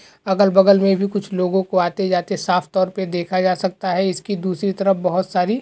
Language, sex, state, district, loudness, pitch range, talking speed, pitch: Hindi, male, Uttar Pradesh, Jalaun, -19 LUFS, 185-195 Hz, 225 wpm, 190 Hz